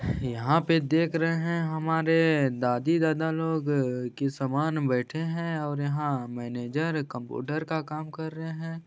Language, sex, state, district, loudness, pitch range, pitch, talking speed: Hindi, male, Chhattisgarh, Bilaspur, -28 LUFS, 135-160 Hz, 155 Hz, 155 wpm